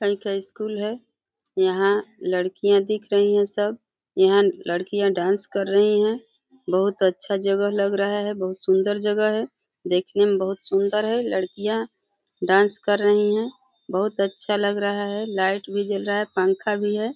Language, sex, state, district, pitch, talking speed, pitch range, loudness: Hindi, female, Uttar Pradesh, Deoria, 205 Hz, 170 wpm, 195-210 Hz, -22 LUFS